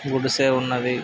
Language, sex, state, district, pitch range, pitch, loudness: Telugu, male, Andhra Pradesh, Krishna, 125-135 Hz, 130 Hz, -21 LUFS